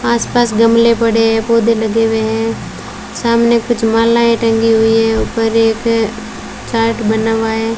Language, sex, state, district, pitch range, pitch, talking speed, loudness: Hindi, female, Rajasthan, Bikaner, 225-230 Hz, 225 Hz, 160 wpm, -13 LUFS